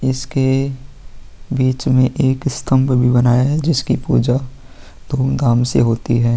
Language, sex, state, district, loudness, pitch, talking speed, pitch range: Hindi, male, Chhattisgarh, Korba, -16 LUFS, 130 Hz, 130 wpm, 120-135 Hz